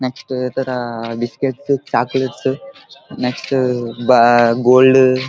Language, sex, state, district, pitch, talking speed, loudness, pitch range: Telugu, male, Andhra Pradesh, Krishna, 130 Hz, 100 wpm, -16 LUFS, 120-130 Hz